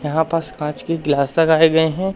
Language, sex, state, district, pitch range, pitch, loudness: Hindi, male, Madhya Pradesh, Umaria, 150-165 Hz, 160 Hz, -17 LUFS